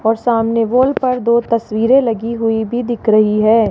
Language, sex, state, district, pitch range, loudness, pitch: Hindi, female, Rajasthan, Jaipur, 220-240 Hz, -14 LUFS, 230 Hz